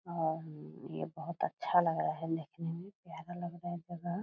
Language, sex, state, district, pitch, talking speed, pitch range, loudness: Hindi, female, Bihar, Purnia, 170 Hz, 200 wpm, 160-175 Hz, -37 LUFS